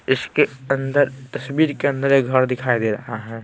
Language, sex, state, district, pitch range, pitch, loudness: Hindi, male, Bihar, Patna, 125-140 Hz, 130 Hz, -20 LUFS